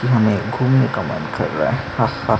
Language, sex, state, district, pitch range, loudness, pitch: Hindi, male, Chhattisgarh, Sukma, 110-130 Hz, -19 LUFS, 115 Hz